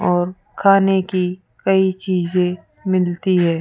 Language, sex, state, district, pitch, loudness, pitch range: Hindi, female, Rajasthan, Jaipur, 185 Hz, -18 LUFS, 180-190 Hz